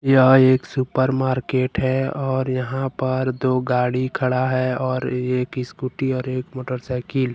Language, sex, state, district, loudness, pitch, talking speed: Hindi, male, Jharkhand, Ranchi, -21 LUFS, 130 Hz, 155 wpm